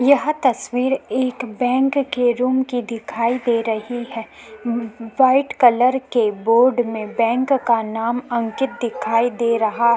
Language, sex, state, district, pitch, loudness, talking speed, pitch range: Hindi, female, Uttarakhand, Tehri Garhwal, 240 Hz, -19 LUFS, 145 wpm, 230-255 Hz